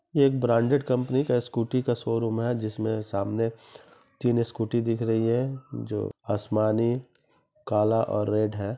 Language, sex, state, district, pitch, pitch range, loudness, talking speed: Hindi, male, Chhattisgarh, Bilaspur, 115 Hz, 110-125 Hz, -26 LUFS, 155 wpm